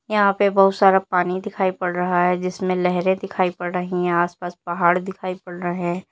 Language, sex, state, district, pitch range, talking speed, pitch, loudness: Hindi, female, Uttar Pradesh, Lalitpur, 175-190 Hz, 215 wpm, 180 Hz, -20 LUFS